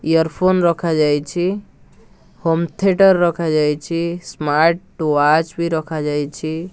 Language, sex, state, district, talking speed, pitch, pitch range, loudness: Odia, male, Odisha, Nuapada, 70 wpm, 165 Hz, 155-175 Hz, -17 LUFS